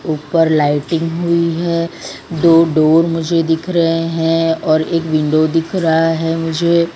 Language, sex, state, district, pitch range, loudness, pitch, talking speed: Hindi, female, Gujarat, Valsad, 160-170 Hz, -14 LUFS, 165 Hz, 155 wpm